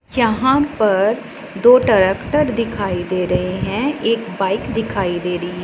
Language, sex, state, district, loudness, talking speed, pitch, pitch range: Hindi, female, Punjab, Pathankot, -17 LUFS, 140 wpm, 215 Hz, 185-240 Hz